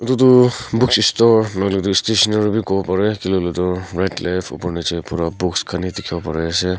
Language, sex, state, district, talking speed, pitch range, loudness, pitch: Nagamese, male, Nagaland, Kohima, 185 wpm, 90-110 Hz, -17 LUFS, 95 Hz